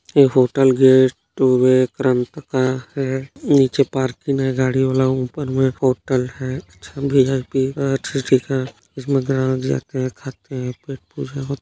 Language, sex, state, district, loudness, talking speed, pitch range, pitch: Hindi, female, Chhattisgarh, Balrampur, -19 LUFS, 155 wpm, 130-135 Hz, 130 Hz